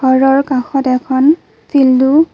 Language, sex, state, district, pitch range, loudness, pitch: Assamese, female, Assam, Kamrup Metropolitan, 260-280 Hz, -12 LUFS, 270 Hz